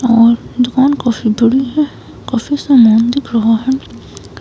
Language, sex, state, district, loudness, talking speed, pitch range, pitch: Hindi, female, Himachal Pradesh, Shimla, -13 LUFS, 135 wpm, 225-265 Hz, 240 Hz